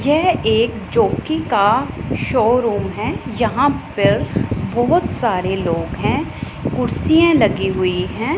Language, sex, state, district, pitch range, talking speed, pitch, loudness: Hindi, female, Punjab, Pathankot, 220-320 Hz, 115 wpm, 235 Hz, -17 LUFS